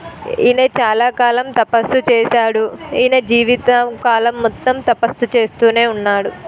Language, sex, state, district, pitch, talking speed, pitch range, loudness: Telugu, female, Telangana, Nalgonda, 235 Hz, 110 wpm, 230-250 Hz, -14 LUFS